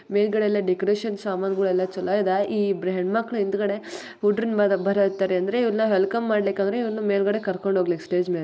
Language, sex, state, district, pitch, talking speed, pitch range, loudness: Kannada, female, Karnataka, Bellary, 200 Hz, 150 wpm, 190-210 Hz, -23 LUFS